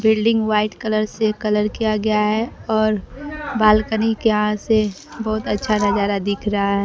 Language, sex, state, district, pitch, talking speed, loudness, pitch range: Hindi, female, Bihar, Kaimur, 215 Hz, 165 wpm, -19 LUFS, 210-220 Hz